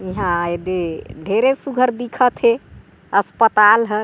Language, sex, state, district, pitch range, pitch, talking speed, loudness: Chhattisgarhi, female, Chhattisgarh, Sarguja, 185-245 Hz, 210 Hz, 135 wpm, -17 LUFS